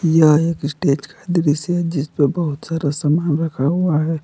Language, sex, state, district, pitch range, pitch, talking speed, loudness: Hindi, male, Jharkhand, Palamu, 145-165 Hz, 160 Hz, 185 wpm, -18 LUFS